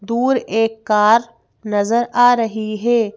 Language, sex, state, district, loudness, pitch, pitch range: Hindi, female, Madhya Pradesh, Bhopal, -16 LUFS, 225 Hz, 215-235 Hz